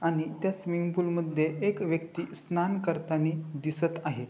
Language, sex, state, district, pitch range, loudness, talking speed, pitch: Marathi, male, Maharashtra, Chandrapur, 160-175 Hz, -30 LUFS, 140 wpm, 165 Hz